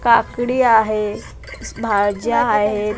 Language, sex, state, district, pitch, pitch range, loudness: Marathi, female, Maharashtra, Mumbai Suburban, 215 Hz, 210-235 Hz, -17 LUFS